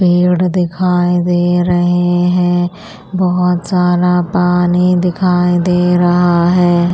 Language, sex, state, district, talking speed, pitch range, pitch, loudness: Hindi, female, Punjab, Pathankot, 105 wpm, 175-180 Hz, 180 Hz, -12 LUFS